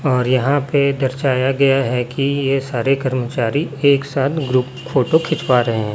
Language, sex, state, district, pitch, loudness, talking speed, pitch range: Hindi, male, Chhattisgarh, Raipur, 135 Hz, -17 LUFS, 160 wpm, 130-140 Hz